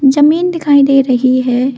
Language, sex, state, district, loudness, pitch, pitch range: Hindi, female, Arunachal Pradesh, Lower Dibang Valley, -11 LUFS, 275 Hz, 255-295 Hz